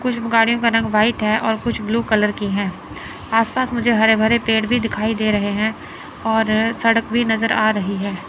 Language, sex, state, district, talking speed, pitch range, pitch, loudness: Hindi, female, Chandigarh, Chandigarh, 210 wpm, 215-230 Hz, 225 Hz, -18 LUFS